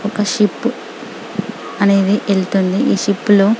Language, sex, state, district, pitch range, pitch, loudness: Telugu, female, Telangana, Karimnagar, 195-210 Hz, 200 Hz, -16 LUFS